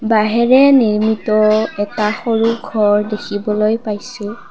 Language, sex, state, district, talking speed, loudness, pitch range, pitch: Assamese, female, Assam, Kamrup Metropolitan, 95 wpm, -15 LUFS, 210-230 Hz, 215 Hz